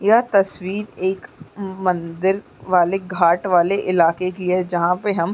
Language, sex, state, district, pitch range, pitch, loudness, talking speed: Hindi, female, Uttarakhand, Uttarkashi, 175-195 Hz, 185 Hz, -19 LUFS, 155 wpm